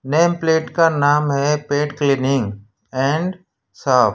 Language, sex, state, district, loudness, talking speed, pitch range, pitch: Hindi, male, Gujarat, Valsad, -18 LUFS, 145 wpm, 130-160 Hz, 145 Hz